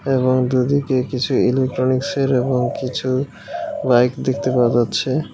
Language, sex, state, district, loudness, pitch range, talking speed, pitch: Bengali, male, West Bengal, Alipurduar, -19 LUFS, 125-135 Hz, 135 wpm, 130 Hz